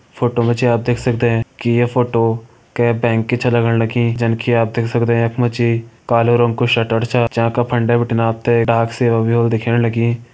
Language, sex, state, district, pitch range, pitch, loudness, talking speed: Hindi, male, Uttarakhand, Uttarkashi, 115-120 Hz, 120 Hz, -16 LUFS, 230 wpm